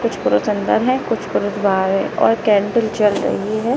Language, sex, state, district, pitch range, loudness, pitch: Hindi, female, Uttar Pradesh, Lalitpur, 200-230 Hz, -17 LUFS, 210 Hz